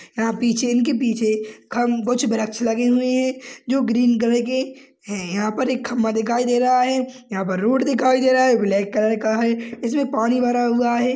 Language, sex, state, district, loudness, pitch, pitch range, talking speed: Hindi, male, Uttar Pradesh, Budaun, -20 LUFS, 240 Hz, 225-255 Hz, 215 wpm